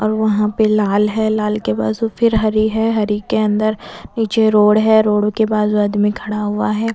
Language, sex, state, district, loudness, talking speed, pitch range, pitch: Hindi, female, Bihar, West Champaran, -16 LUFS, 205 wpm, 210-220 Hz, 215 Hz